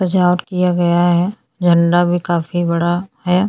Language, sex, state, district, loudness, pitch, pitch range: Hindi, female, Chhattisgarh, Bastar, -16 LUFS, 175 Hz, 175-180 Hz